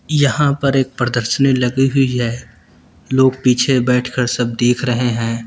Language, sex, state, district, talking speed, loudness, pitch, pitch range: Hindi, male, Uttar Pradesh, Lucknow, 155 wpm, -16 LUFS, 125 Hz, 120-135 Hz